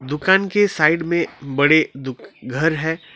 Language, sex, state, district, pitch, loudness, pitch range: Hindi, male, West Bengal, Alipurduar, 160 Hz, -18 LUFS, 140-170 Hz